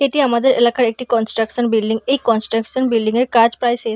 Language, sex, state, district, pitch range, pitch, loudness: Bengali, female, West Bengal, Purulia, 225-255 Hz, 235 Hz, -16 LUFS